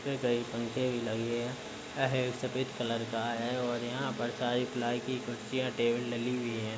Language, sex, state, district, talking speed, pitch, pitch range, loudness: Hindi, male, Uttar Pradesh, Budaun, 205 wpm, 120 Hz, 120-125 Hz, -34 LUFS